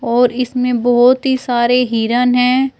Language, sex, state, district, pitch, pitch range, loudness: Hindi, female, Uttar Pradesh, Shamli, 250 Hz, 240-255 Hz, -14 LUFS